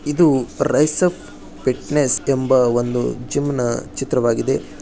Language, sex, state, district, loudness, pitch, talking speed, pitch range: Kannada, male, Karnataka, Bijapur, -19 LUFS, 130 Hz, 100 wpm, 125-145 Hz